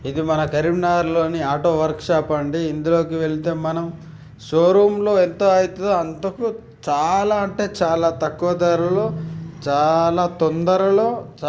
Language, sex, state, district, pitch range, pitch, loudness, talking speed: Telugu, male, Telangana, Karimnagar, 160-185 Hz, 165 Hz, -19 LUFS, 125 wpm